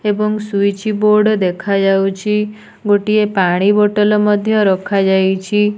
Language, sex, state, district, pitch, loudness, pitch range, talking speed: Odia, female, Odisha, Nuapada, 210 Hz, -14 LUFS, 195-210 Hz, 115 wpm